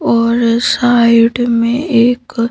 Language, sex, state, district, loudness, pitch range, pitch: Hindi, female, Madhya Pradesh, Bhopal, -12 LUFS, 230-245 Hz, 235 Hz